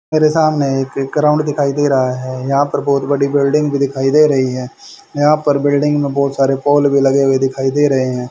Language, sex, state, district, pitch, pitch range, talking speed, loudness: Hindi, male, Haryana, Charkhi Dadri, 140 Hz, 135-145 Hz, 230 wpm, -14 LUFS